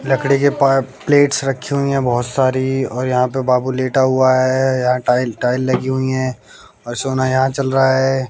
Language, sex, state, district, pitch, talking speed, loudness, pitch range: Hindi, male, Haryana, Jhajjar, 130 Hz, 200 wpm, -16 LUFS, 125-135 Hz